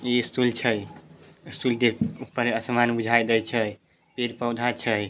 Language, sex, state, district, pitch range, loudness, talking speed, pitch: Maithili, male, Bihar, Samastipur, 115-120 Hz, -25 LUFS, 140 wpm, 120 Hz